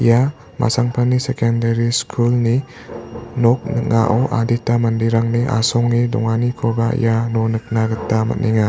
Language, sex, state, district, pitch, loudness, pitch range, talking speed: Garo, male, Meghalaya, West Garo Hills, 115 Hz, -17 LUFS, 115-120 Hz, 95 wpm